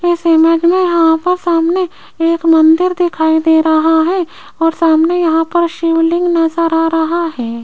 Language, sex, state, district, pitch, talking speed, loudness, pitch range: Hindi, female, Rajasthan, Jaipur, 330 Hz, 165 wpm, -12 LUFS, 320-345 Hz